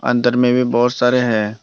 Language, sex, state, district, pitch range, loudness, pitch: Hindi, male, Tripura, Dhalai, 120-125 Hz, -16 LUFS, 125 Hz